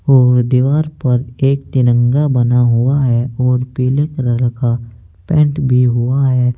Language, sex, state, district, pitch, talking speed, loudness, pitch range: Hindi, male, Uttar Pradesh, Saharanpur, 125 Hz, 145 wpm, -14 LUFS, 120-135 Hz